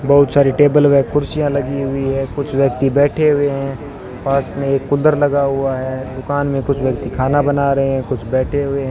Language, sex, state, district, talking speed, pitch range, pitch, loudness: Hindi, male, Rajasthan, Bikaner, 215 wpm, 135-145 Hz, 140 Hz, -16 LUFS